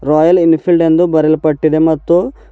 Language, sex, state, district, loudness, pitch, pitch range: Kannada, male, Karnataka, Bidar, -11 LUFS, 160 Hz, 155-170 Hz